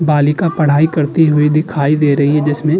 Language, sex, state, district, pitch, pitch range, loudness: Hindi, male, Uttar Pradesh, Jalaun, 150 Hz, 145-155 Hz, -13 LUFS